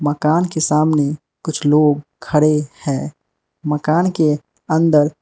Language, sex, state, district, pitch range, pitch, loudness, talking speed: Hindi, male, Manipur, Imphal West, 150-155 Hz, 150 Hz, -17 LUFS, 125 wpm